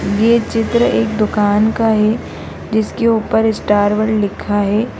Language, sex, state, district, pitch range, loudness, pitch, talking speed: Hindi, female, Bihar, Madhepura, 210-225 Hz, -15 LUFS, 220 Hz, 145 wpm